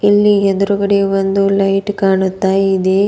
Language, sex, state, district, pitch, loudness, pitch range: Kannada, female, Karnataka, Bidar, 195 Hz, -14 LUFS, 195-200 Hz